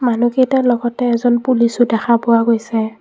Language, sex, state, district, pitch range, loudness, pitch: Assamese, female, Assam, Kamrup Metropolitan, 230-245 Hz, -15 LUFS, 240 Hz